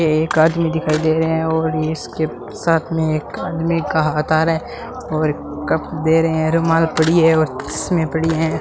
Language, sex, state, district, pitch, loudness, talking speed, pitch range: Hindi, male, Rajasthan, Bikaner, 160 Hz, -18 LUFS, 210 wpm, 155-165 Hz